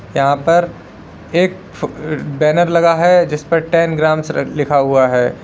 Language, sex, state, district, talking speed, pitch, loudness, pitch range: Hindi, male, Uttar Pradesh, Lalitpur, 155 wpm, 155 Hz, -14 LUFS, 145-170 Hz